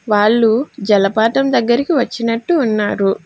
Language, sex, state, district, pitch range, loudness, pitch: Telugu, female, Telangana, Hyderabad, 210-255 Hz, -15 LUFS, 230 Hz